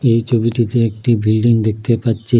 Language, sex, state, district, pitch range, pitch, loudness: Bengali, male, Assam, Hailakandi, 110-120 Hz, 115 Hz, -15 LUFS